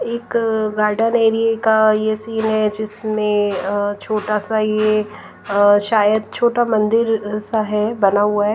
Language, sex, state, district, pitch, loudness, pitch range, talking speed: Hindi, female, Punjab, Pathankot, 215 Hz, -17 LUFS, 210-220 Hz, 155 wpm